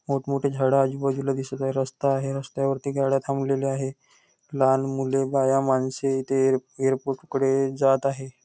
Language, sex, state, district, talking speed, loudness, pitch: Marathi, male, Maharashtra, Nagpur, 155 wpm, -24 LUFS, 135 Hz